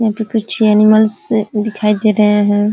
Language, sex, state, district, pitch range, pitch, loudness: Hindi, female, Uttar Pradesh, Ghazipur, 210-220 Hz, 215 Hz, -13 LUFS